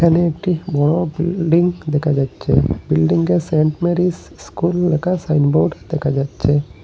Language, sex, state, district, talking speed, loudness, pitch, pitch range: Bengali, male, Assam, Hailakandi, 150 wpm, -17 LUFS, 155 Hz, 145-175 Hz